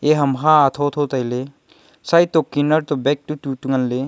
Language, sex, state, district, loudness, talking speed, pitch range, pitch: Wancho, male, Arunachal Pradesh, Longding, -18 LUFS, 205 wpm, 135-150 Hz, 145 Hz